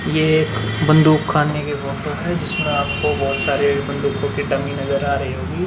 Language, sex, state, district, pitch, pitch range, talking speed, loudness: Hindi, male, Bihar, Vaishali, 145 Hz, 140-150 Hz, 200 wpm, -19 LUFS